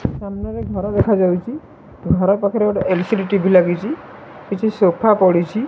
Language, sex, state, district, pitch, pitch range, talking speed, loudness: Odia, male, Odisha, Malkangiri, 195 Hz, 180-210 Hz, 160 wpm, -17 LUFS